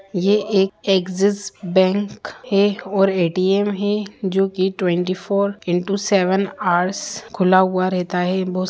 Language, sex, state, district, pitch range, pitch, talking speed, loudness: Hindi, female, Bihar, Gaya, 185-200 Hz, 195 Hz, 125 wpm, -19 LUFS